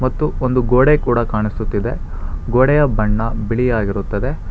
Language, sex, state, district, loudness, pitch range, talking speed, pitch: Kannada, male, Karnataka, Bangalore, -17 LUFS, 105-130 Hz, 120 wpm, 115 Hz